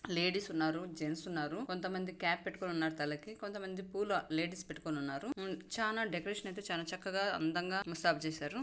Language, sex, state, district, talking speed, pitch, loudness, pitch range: Telugu, female, Andhra Pradesh, Anantapur, 155 wpm, 180 Hz, -38 LUFS, 160-195 Hz